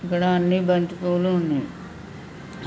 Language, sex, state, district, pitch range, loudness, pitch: Telugu, male, Telangana, Nalgonda, 175-180 Hz, -22 LUFS, 175 Hz